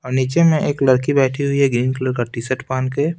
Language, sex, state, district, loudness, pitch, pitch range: Hindi, male, Bihar, Patna, -18 LUFS, 130 Hz, 130-140 Hz